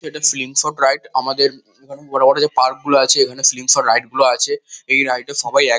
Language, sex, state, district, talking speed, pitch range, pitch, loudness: Bengali, male, West Bengal, North 24 Parganas, 260 wpm, 130-140 Hz, 135 Hz, -15 LUFS